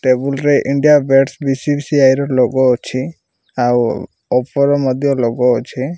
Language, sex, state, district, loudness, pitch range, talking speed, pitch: Odia, male, Odisha, Malkangiri, -14 LUFS, 125-140 Hz, 140 wpm, 135 Hz